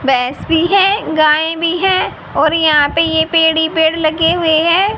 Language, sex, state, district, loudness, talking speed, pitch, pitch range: Hindi, female, Haryana, Jhajjar, -12 LUFS, 195 wpm, 320 Hz, 315-335 Hz